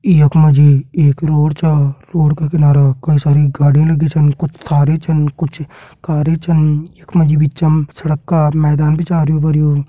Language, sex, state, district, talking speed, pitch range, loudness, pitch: Hindi, male, Uttarakhand, Tehri Garhwal, 195 wpm, 145-160 Hz, -13 LUFS, 150 Hz